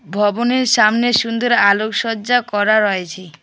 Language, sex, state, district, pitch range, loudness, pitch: Bengali, male, West Bengal, Alipurduar, 205-240 Hz, -15 LUFS, 215 Hz